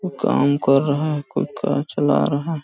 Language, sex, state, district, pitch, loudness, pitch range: Hindi, male, Chhattisgarh, Balrampur, 145 Hz, -20 LUFS, 140-155 Hz